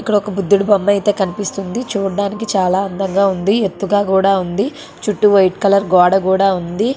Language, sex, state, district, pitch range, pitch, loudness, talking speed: Telugu, female, Andhra Pradesh, Srikakulam, 190-205 Hz, 200 Hz, -15 LUFS, 180 wpm